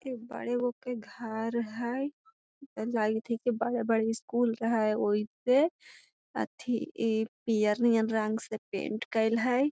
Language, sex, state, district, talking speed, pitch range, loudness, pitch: Magahi, female, Bihar, Gaya, 135 wpm, 220-245 Hz, -31 LUFS, 230 Hz